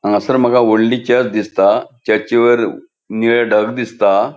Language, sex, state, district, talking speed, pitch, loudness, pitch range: Konkani, male, Goa, North and South Goa, 125 wpm, 120 Hz, -14 LUFS, 110-120 Hz